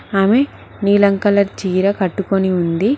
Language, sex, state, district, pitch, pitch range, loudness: Telugu, female, Telangana, Mahabubabad, 200 Hz, 190-205 Hz, -16 LUFS